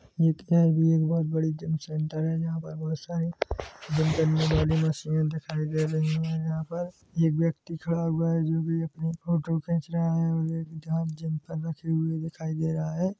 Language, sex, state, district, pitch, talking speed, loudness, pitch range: Hindi, male, Chhattisgarh, Bilaspur, 160 Hz, 180 wpm, -28 LUFS, 160-165 Hz